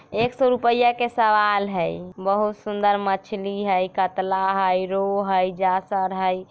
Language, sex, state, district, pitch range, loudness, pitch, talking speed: Bajjika, female, Bihar, Vaishali, 190-210 Hz, -22 LUFS, 195 Hz, 145 wpm